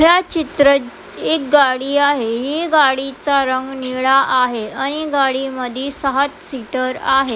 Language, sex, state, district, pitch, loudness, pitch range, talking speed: Marathi, female, Maharashtra, Pune, 270 Hz, -16 LUFS, 255-285 Hz, 130 wpm